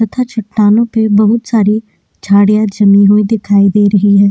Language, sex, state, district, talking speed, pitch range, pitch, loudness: Hindi, female, Uttarakhand, Tehri Garhwal, 165 wpm, 200-220 Hz, 210 Hz, -10 LUFS